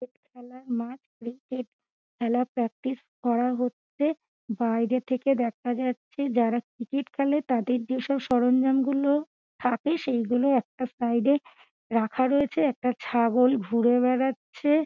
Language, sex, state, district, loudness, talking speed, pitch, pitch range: Bengali, female, West Bengal, Dakshin Dinajpur, -26 LUFS, 125 wpm, 250 Hz, 240-270 Hz